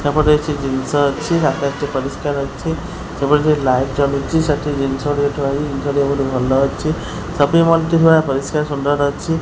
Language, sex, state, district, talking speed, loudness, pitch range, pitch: Odia, male, Odisha, Khordha, 170 wpm, -17 LUFS, 140-155 Hz, 145 Hz